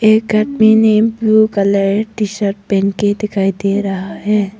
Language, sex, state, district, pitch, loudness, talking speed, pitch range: Hindi, female, Arunachal Pradesh, Papum Pare, 210 Hz, -14 LUFS, 155 wpm, 200-215 Hz